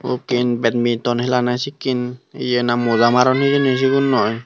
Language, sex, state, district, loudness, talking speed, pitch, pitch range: Chakma, male, Tripura, Unakoti, -17 LUFS, 135 wpm, 125 Hz, 120-130 Hz